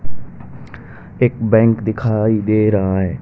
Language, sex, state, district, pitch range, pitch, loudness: Hindi, male, Haryana, Rohtak, 105-115 Hz, 110 Hz, -16 LUFS